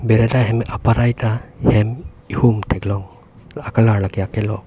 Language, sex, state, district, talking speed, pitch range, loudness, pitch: Karbi, male, Assam, Karbi Anglong, 165 wpm, 100-120 Hz, -18 LUFS, 110 Hz